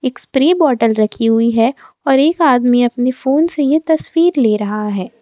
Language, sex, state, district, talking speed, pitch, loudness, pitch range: Hindi, female, Jharkhand, Ranchi, 185 wpm, 255 Hz, -14 LUFS, 230-305 Hz